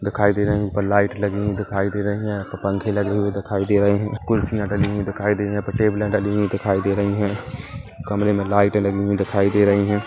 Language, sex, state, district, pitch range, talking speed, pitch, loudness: Hindi, male, Chhattisgarh, Kabirdham, 100-105 Hz, 245 wpm, 100 Hz, -21 LUFS